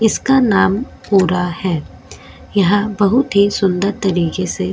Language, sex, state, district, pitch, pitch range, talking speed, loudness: Hindi, female, Goa, North and South Goa, 195 Hz, 180-205 Hz, 140 wpm, -15 LUFS